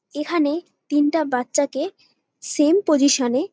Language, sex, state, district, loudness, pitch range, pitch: Bengali, female, West Bengal, Jalpaiguri, -20 LUFS, 280-325 Hz, 295 Hz